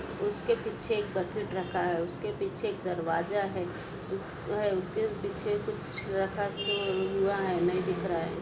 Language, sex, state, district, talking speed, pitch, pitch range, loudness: Hindi, female, Maharashtra, Solapur, 155 wpm, 195 Hz, 185-205 Hz, -32 LUFS